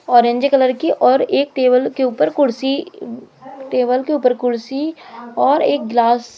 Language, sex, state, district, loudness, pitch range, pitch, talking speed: Hindi, female, Madhya Pradesh, Umaria, -16 LUFS, 245-280 Hz, 260 Hz, 160 wpm